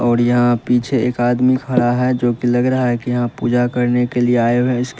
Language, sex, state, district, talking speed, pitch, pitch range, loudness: Hindi, male, Uttar Pradesh, Lalitpur, 265 wpm, 120 Hz, 120-125 Hz, -16 LUFS